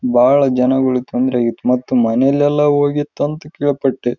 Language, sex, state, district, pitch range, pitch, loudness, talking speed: Kannada, male, Karnataka, Raichur, 125-145 Hz, 130 Hz, -15 LUFS, 245 wpm